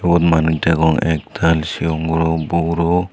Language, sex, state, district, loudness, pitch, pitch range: Chakma, male, Tripura, Unakoti, -17 LUFS, 80 Hz, 80-85 Hz